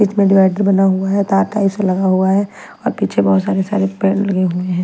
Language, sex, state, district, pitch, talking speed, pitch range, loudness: Hindi, female, Chandigarh, Chandigarh, 195 Hz, 250 wpm, 185-200 Hz, -15 LUFS